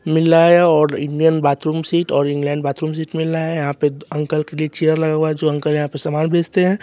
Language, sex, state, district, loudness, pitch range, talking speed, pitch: Hindi, male, Bihar, West Champaran, -17 LUFS, 150-160 Hz, 255 wpm, 155 Hz